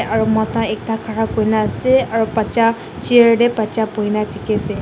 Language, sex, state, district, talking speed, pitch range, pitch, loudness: Nagamese, female, Nagaland, Dimapur, 160 wpm, 220-230 Hz, 220 Hz, -17 LUFS